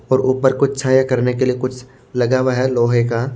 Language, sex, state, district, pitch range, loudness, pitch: Hindi, male, Maharashtra, Washim, 125-130 Hz, -17 LUFS, 130 Hz